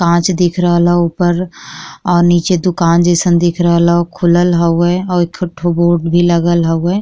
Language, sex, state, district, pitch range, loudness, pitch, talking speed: Bhojpuri, female, Uttar Pradesh, Gorakhpur, 170-175 Hz, -12 LUFS, 175 Hz, 180 wpm